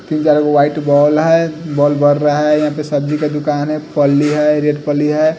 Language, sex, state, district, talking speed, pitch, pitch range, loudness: Hindi, male, Delhi, New Delhi, 200 wpm, 150 Hz, 145-150 Hz, -14 LUFS